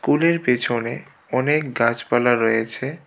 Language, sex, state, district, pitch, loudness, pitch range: Bengali, male, Tripura, West Tripura, 125 Hz, -20 LUFS, 115-145 Hz